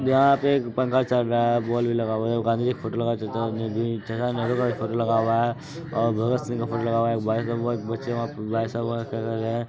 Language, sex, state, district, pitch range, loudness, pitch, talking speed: Maithili, male, Bihar, Supaul, 115-120 Hz, -25 LUFS, 115 Hz, 205 wpm